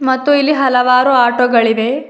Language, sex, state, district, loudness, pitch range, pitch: Kannada, female, Karnataka, Bidar, -12 LUFS, 245-275 Hz, 255 Hz